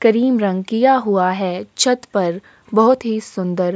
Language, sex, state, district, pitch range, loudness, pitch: Hindi, female, Uttarakhand, Tehri Garhwal, 185-240 Hz, -17 LUFS, 215 Hz